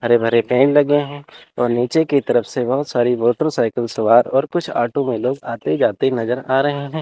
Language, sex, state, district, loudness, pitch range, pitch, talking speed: Hindi, male, Chandigarh, Chandigarh, -17 LUFS, 120-145 Hz, 130 Hz, 215 wpm